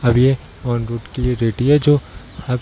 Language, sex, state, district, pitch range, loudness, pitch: Hindi, male, Bihar, Darbhanga, 120-135 Hz, -18 LUFS, 125 Hz